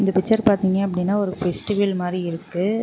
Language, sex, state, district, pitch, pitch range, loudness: Tamil, female, Tamil Nadu, Namakkal, 195 Hz, 180-205 Hz, -21 LUFS